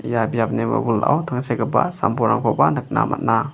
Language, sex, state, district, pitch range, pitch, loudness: Garo, male, Meghalaya, West Garo Hills, 115-145 Hz, 120 Hz, -20 LUFS